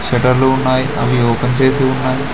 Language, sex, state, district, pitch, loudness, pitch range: Telugu, male, Telangana, Mahabubabad, 130 Hz, -14 LUFS, 125-130 Hz